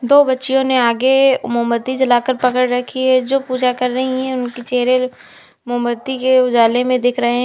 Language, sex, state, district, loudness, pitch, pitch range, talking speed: Hindi, female, Uttar Pradesh, Lalitpur, -16 LUFS, 255 Hz, 245-260 Hz, 185 wpm